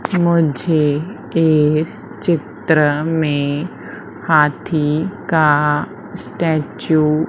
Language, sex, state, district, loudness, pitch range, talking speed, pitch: Hindi, female, Madhya Pradesh, Umaria, -17 LUFS, 150-165 Hz, 65 wpm, 155 Hz